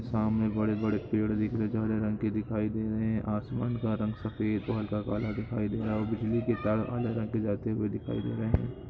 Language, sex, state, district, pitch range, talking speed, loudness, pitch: Hindi, male, Andhra Pradesh, Guntur, 105-110 Hz, 235 wpm, -31 LUFS, 110 Hz